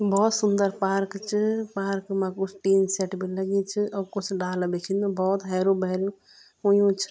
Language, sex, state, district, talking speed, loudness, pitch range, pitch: Garhwali, female, Uttarakhand, Tehri Garhwal, 185 wpm, -25 LUFS, 190-200 Hz, 195 Hz